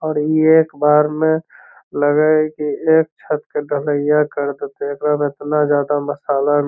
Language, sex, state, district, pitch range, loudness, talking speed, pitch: Magahi, male, Bihar, Lakhisarai, 145-155 Hz, -17 LUFS, 160 wpm, 150 Hz